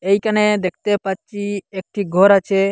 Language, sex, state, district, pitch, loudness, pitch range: Bengali, male, Assam, Hailakandi, 200 Hz, -18 LUFS, 190-205 Hz